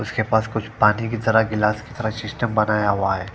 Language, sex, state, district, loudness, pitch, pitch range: Hindi, female, Punjab, Fazilka, -21 LUFS, 110 Hz, 105-110 Hz